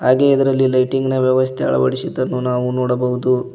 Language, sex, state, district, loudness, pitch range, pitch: Kannada, male, Karnataka, Koppal, -17 LUFS, 125-130 Hz, 130 Hz